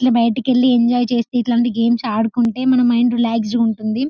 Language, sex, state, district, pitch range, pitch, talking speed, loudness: Telugu, female, Telangana, Karimnagar, 230-245 Hz, 240 Hz, 175 wpm, -16 LUFS